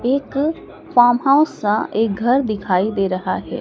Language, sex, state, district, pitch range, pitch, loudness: Hindi, male, Madhya Pradesh, Dhar, 205-275 Hz, 240 Hz, -18 LUFS